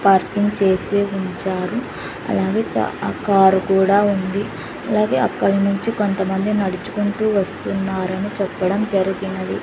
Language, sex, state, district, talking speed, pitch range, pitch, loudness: Telugu, female, Andhra Pradesh, Sri Satya Sai, 105 wpm, 190-205 Hz, 195 Hz, -19 LUFS